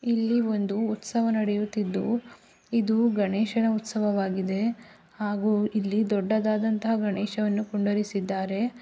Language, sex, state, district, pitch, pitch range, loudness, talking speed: Kannada, female, Karnataka, Raichur, 215 Hz, 205-225 Hz, -26 LUFS, 80 wpm